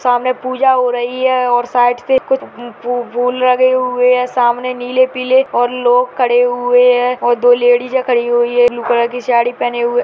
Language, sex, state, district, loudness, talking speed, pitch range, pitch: Hindi, female, Chhattisgarh, Raigarh, -13 LUFS, 205 wpm, 245-255 Hz, 245 Hz